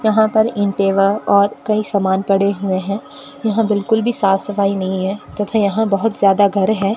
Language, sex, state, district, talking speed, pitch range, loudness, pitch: Hindi, female, Rajasthan, Bikaner, 200 wpm, 195-215 Hz, -16 LUFS, 200 Hz